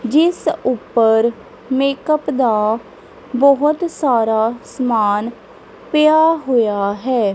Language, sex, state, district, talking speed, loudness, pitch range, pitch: Punjabi, female, Punjab, Kapurthala, 80 wpm, -16 LUFS, 225-290 Hz, 250 Hz